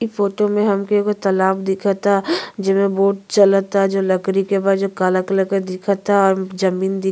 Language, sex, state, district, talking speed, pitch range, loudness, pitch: Bhojpuri, female, Uttar Pradesh, Ghazipur, 185 wpm, 190-200 Hz, -17 LUFS, 195 Hz